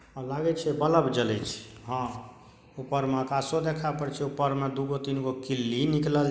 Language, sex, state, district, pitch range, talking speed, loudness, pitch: Maithili, male, Bihar, Saharsa, 130-145 Hz, 190 wpm, -29 LUFS, 135 Hz